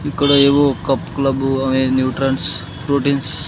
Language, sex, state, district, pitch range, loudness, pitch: Telugu, male, Andhra Pradesh, Sri Satya Sai, 130-140 Hz, -17 LUFS, 135 Hz